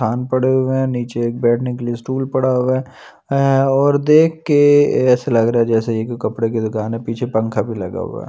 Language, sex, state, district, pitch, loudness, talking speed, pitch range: Hindi, male, Delhi, New Delhi, 125 Hz, -17 LUFS, 245 wpm, 115-130 Hz